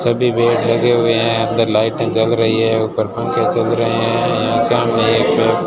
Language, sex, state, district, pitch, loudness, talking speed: Hindi, male, Rajasthan, Bikaner, 115 Hz, -15 LUFS, 200 wpm